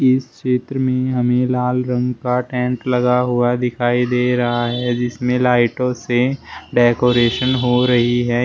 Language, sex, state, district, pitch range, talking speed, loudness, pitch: Hindi, male, Uttar Pradesh, Shamli, 120-125 Hz, 150 wpm, -17 LUFS, 125 Hz